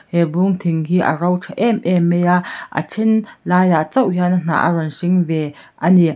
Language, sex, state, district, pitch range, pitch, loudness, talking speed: Mizo, female, Mizoram, Aizawl, 165-180 Hz, 180 Hz, -17 LUFS, 235 wpm